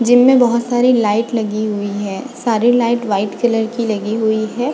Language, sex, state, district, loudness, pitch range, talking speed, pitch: Hindi, female, Goa, North and South Goa, -16 LUFS, 215-240 Hz, 205 wpm, 225 Hz